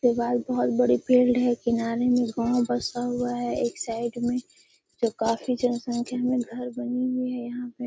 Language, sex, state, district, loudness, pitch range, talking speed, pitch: Hindi, female, Bihar, Gaya, -26 LUFS, 235-250 Hz, 200 wpm, 245 Hz